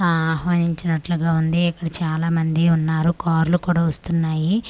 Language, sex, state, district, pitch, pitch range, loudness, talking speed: Telugu, female, Andhra Pradesh, Manyam, 165 Hz, 160-170 Hz, -20 LUFS, 140 wpm